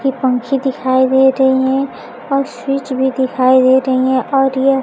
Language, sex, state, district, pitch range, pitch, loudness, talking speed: Hindi, female, Bihar, Kaimur, 260-270 Hz, 265 Hz, -14 LUFS, 200 wpm